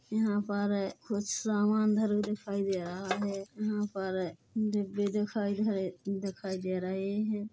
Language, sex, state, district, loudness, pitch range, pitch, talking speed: Hindi, female, Chhattisgarh, Korba, -32 LUFS, 195-210 Hz, 205 Hz, 145 wpm